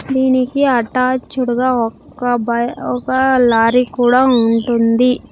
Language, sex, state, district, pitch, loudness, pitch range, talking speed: Telugu, female, Andhra Pradesh, Sri Satya Sai, 245 Hz, -15 LUFS, 235-255 Hz, 100 wpm